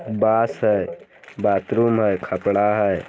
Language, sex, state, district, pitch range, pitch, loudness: Hindi, male, Bihar, Jamui, 105-115 Hz, 110 Hz, -20 LUFS